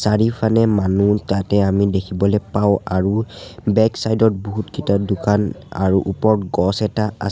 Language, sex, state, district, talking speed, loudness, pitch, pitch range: Assamese, male, Assam, Sonitpur, 140 wpm, -18 LUFS, 100 Hz, 95-110 Hz